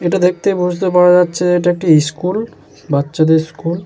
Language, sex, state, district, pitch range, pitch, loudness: Bengali, male, West Bengal, Jalpaiguri, 160-180 Hz, 180 Hz, -14 LUFS